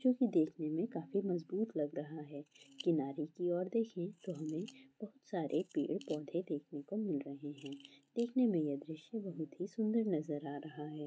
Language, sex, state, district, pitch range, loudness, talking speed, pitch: Hindi, female, Bihar, Kishanganj, 150-200 Hz, -39 LUFS, 140 wpm, 160 Hz